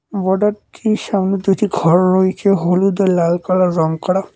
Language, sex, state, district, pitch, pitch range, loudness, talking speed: Bengali, male, West Bengal, Cooch Behar, 190 Hz, 180-200 Hz, -16 LUFS, 165 wpm